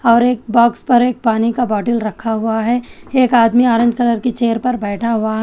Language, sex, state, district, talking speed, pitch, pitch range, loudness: Hindi, female, Telangana, Hyderabad, 230 wpm, 235 Hz, 225-245 Hz, -15 LUFS